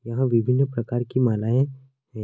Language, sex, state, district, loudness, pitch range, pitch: Hindi, male, Chhattisgarh, Korba, -23 LUFS, 115-130 Hz, 125 Hz